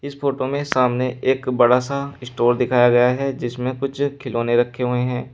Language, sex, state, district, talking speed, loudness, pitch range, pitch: Hindi, male, Uttar Pradesh, Shamli, 190 wpm, -20 LUFS, 125-135 Hz, 125 Hz